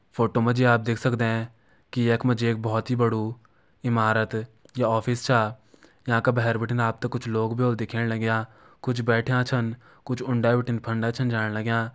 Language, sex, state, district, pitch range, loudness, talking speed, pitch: Garhwali, male, Uttarakhand, Uttarkashi, 115-125 Hz, -25 LUFS, 190 wpm, 115 Hz